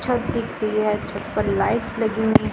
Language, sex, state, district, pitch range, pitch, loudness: Hindi, female, Punjab, Pathankot, 215-230 Hz, 220 Hz, -22 LUFS